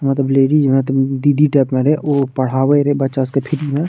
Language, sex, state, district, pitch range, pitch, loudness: Maithili, male, Bihar, Madhepura, 135-145 Hz, 135 Hz, -15 LUFS